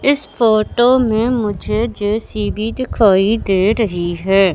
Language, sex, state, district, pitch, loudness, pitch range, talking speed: Hindi, male, Madhya Pradesh, Katni, 220 Hz, -16 LUFS, 200-230 Hz, 120 wpm